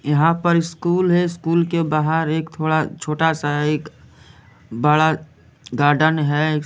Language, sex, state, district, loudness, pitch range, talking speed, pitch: Hindi, male, Jharkhand, Jamtara, -19 LUFS, 150-165 Hz, 135 wpm, 155 Hz